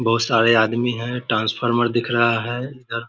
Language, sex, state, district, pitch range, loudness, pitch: Hindi, male, Bihar, Samastipur, 115-120 Hz, -19 LUFS, 120 Hz